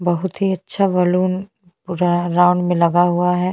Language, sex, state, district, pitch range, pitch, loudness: Hindi, female, Chhattisgarh, Bastar, 175-185 Hz, 180 Hz, -17 LUFS